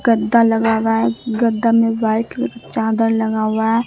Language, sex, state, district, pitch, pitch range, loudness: Hindi, female, Bihar, Katihar, 225 Hz, 220-230 Hz, -17 LUFS